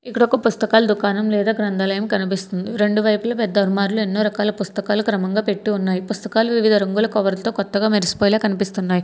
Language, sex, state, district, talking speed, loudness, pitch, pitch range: Telugu, female, Telangana, Hyderabad, 160 wpm, -19 LUFS, 210 Hz, 200-220 Hz